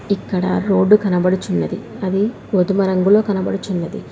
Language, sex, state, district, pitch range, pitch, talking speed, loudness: Telugu, female, Telangana, Hyderabad, 185-205 Hz, 195 Hz, 115 wpm, -17 LUFS